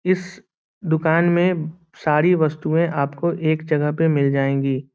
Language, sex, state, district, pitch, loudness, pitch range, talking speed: Hindi, male, Bihar, Saran, 160 Hz, -20 LUFS, 145-170 Hz, 135 wpm